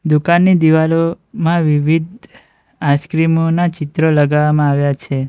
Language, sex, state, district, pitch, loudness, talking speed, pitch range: Gujarati, male, Gujarat, Valsad, 160 Hz, -14 LUFS, 100 wpm, 150-165 Hz